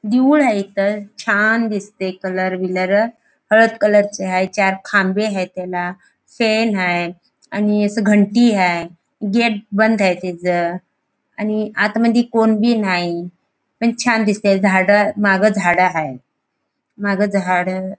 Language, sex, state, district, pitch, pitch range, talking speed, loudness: Marathi, female, Goa, North and South Goa, 205 Hz, 185-220 Hz, 135 wpm, -16 LUFS